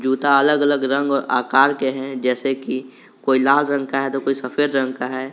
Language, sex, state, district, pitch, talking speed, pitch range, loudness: Hindi, male, Jharkhand, Garhwa, 135 Hz, 235 wpm, 130-140 Hz, -19 LUFS